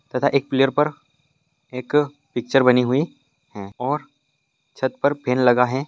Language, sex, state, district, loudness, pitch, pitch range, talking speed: Hindi, male, Chhattisgarh, Raigarh, -20 LUFS, 140 Hz, 125-150 Hz, 155 wpm